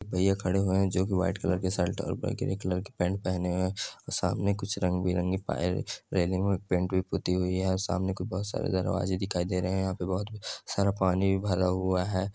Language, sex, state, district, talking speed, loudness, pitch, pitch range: Hindi, male, Andhra Pradesh, Chittoor, 230 wpm, -29 LUFS, 95 Hz, 90-95 Hz